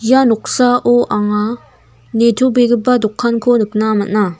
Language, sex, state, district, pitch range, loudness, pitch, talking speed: Garo, female, Meghalaya, North Garo Hills, 210-245 Hz, -14 LUFS, 235 Hz, 95 wpm